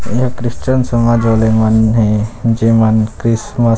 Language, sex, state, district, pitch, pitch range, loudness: Chhattisgarhi, male, Chhattisgarh, Rajnandgaon, 115 Hz, 110-120 Hz, -13 LUFS